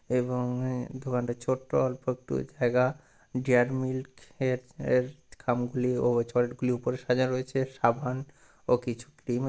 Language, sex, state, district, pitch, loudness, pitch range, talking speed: Bengali, male, West Bengal, Purulia, 125 Hz, -29 LUFS, 120-130 Hz, 150 wpm